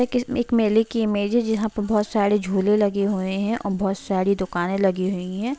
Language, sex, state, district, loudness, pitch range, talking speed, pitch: Hindi, female, Bihar, Sitamarhi, -22 LUFS, 195-220 Hz, 235 wpm, 205 Hz